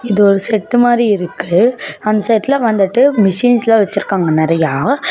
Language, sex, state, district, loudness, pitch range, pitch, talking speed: Tamil, female, Tamil Nadu, Namakkal, -13 LUFS, 190-235 Hz, 210 Hz, 115 wpm